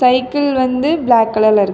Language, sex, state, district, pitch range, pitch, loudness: Tamil, female, Tamil Nadu, Kanyakumari, 220-270 Hz, 255 Hz, -14 LUFS